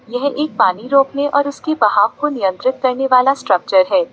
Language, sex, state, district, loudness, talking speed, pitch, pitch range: Hindi, female, Uttar Pradesh, Lalitpur, -15 LUFS, 205 wpm, 260 Hz, 215-285 Hz